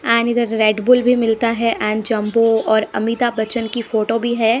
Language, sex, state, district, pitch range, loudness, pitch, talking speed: Hindi, female, Punjab, Pathankot, 220-235 Hz, -17 LUFS, 230 Hz, 210 wpm